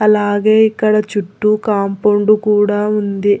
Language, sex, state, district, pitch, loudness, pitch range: Telugu, male, Telangana, Hyderabad, 210 Hz, -14 LUFS, 205-215 Hz